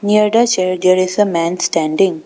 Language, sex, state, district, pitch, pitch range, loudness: English, female, Arunachal Pradesh, Papum Pare, 185 Hz, 175-205 Hz, -14 LUFS